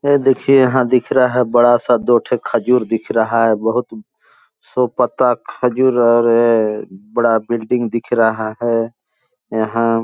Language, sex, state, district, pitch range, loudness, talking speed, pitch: Hindi, male, Chhattisgarh, Balrampur, 115-125 Hz, -15 LUFS, 150 wpm, 120 Hz